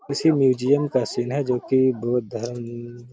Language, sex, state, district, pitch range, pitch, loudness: Hindi, male, Bihar, Gaya, 120-130 Hz, 125 Hz, -22 LUFS